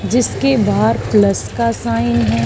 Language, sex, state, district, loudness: Hindi, female, Haryana, Charkhi Dadri, -15 LUFS